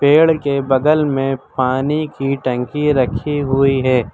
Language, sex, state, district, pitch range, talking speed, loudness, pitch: Hindi, male, Uttar Pradesh, Lucknow, 130-150 Hz, 145 wpm, -16 LUFS, 135 Hz